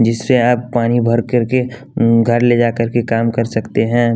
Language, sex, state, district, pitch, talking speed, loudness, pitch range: Hindi, male, Bihar, West Champaran, 120 Hz, 200 wpm, -15 LUFS, 115-120 Hz